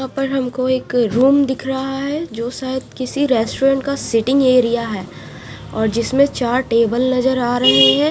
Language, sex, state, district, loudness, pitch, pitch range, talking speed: Hindi, female, Punjab, Fazilka, -17 LUFS, 255 Hz, 230-270 Hz, 180 wpm